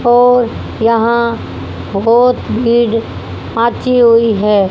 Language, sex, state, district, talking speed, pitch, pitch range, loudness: Hindi, female, Haryana, Rohtak, 90 wpm, 235 Hz, 230-240 Hz, -12 LUFS